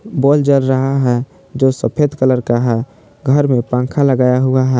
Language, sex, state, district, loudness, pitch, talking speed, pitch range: Hindi, male, Jharkhand, Palamu, -14 LUFS, 130 Hz, 185 wpm, 125-140 Hz